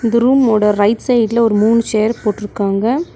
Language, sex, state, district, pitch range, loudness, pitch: Tamil, female, Tamil Nadu, Nilgiris, 210-235 Hz, -14 LUFS, 225 Hz